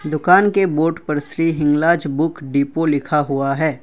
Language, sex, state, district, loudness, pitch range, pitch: Hindi, male, Assam, Kamrup Metropolitan, -17 LUFS, 145-165 Hz, 155 Hz